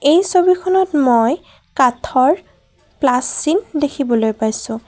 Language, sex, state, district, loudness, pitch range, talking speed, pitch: Assamese, female, Assam, Kamrup Metropolitan, -16 LUFS, 245-345 Hz, 100 wpm, 280 Hz